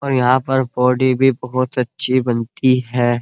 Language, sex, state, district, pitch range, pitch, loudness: Hindi, male, Uttar Pradesh, Muzaffarnagar, 125-130 Hz, 125 Hz, -17 LUFS